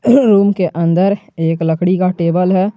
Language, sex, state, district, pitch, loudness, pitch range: Hindi, male, Jharkhand, Garhwa, 185 Hz, -14 LUFS, 170-200 Hz